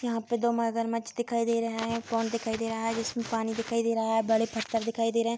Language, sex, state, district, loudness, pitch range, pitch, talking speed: Hindi, female, Bihar, Begusarai, -29 LUFS, 225-230 Hz, 230 Hz, 280 wpm